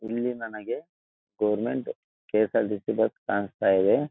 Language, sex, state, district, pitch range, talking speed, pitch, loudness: Kannada, male, Karnataka, Dharwad, 105-115 Hz, 100 wpm, 110 Hz, -27 LUFS